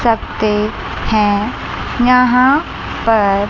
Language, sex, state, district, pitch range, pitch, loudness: Hindi, female, Chandigarh, Chandigarh, 210-250 Hz, 220 Hz, -15 LUFS